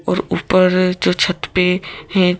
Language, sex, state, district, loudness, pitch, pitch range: Hindi, female, Madhya Pradesh, Bhopal, -16 LUFS, 180 Hz, 180-185 Hz